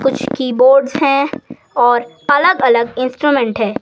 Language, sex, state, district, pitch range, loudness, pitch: Hindi, female, Himachal Pradesh, Shimla, 240-280 Hz, -14 LUFS, 265 Hz